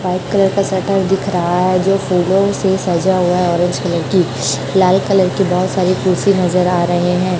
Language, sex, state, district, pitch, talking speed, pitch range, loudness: Hindi, male, Chhattisgarh, Raipur, 185 Hz, 210 wpm, 180-190 Hz, -14 LUFS